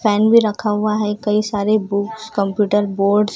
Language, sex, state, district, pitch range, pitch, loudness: Hindi, female, Maharashtra, Gondia, 205-215 Hz, 210 Hz, -17 LUFS